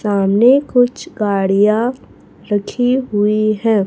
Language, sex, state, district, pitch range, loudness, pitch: Hindi, female, Chhattisgarh, Raipur, 205-245 Hz, -15 LUFS, 215 Hz